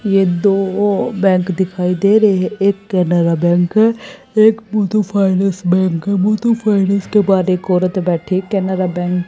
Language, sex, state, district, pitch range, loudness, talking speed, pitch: Hindi, female, Haryana, Jhajjar, 185-205 Hz, -15 LUFS, 180 wpm, 195 Hz